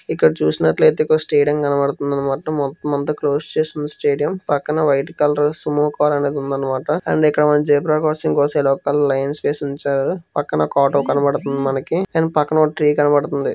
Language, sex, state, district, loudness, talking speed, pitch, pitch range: Telugu, male, Andhra Pradesh, Visakhapatnam, -18 LUFS, 175 wpm, 145 Hz, 140-150 Hz